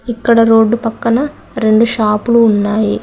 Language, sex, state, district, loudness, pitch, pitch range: Telugu, female, Telangana, Mahabubabad, -12 LUFS, 230 Hz, 215-235 Hz